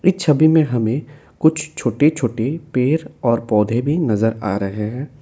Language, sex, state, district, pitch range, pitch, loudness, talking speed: Hindi, male, Assam, Kamrup Metropolitan, 115-155 Hz, 130 Hz, -18 LUFS, 170 wpm